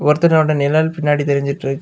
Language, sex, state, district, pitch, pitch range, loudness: Tamil, male, Tamil Nadu, Kanyakumari, 150 Hz, 140-155 Hz, -16 LUFS